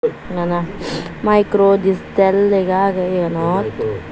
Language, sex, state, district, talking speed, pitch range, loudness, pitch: Chakma, female, Tripura, Dhalai, 85 wpm, 180-205 Hz, -17 LUFS, 195 Hz